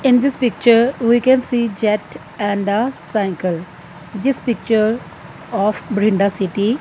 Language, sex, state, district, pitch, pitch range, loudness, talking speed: English, female, Punjab, Fazilka, 215 Hz, 200-240 Hz, -17 LUFS, 130 wpm